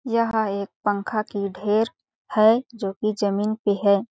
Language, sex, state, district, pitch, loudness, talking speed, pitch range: Hindi, female, Chhattisgarh, Balrampur, 215 Hz, -23 LUFS, 160 wpm, 200-220 Hz